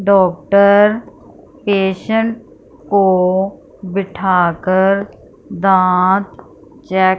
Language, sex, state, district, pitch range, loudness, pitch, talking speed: Hindi, female, Punjab, Fazilka, 185-200 Hz, -14 LUFS, 195 Hz, 60 wpm